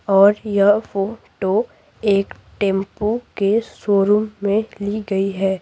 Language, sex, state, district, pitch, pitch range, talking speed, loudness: Hindi, female, Bihar, Patna, 205 Hz, 195-215 Hz, 115 wpm, -19 LUFS